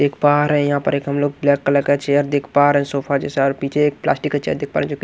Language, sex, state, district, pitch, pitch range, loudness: Hindi, male, Maharashtra, Washim, 140 Hz, 140-145 Hz, -18 LUFS